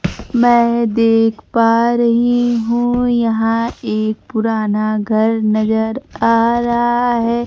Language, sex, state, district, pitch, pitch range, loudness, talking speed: Hindi, female, Bihar, Kaimur, 230 Hz, 225-240 Hz, -15 LUFS, 105 wpm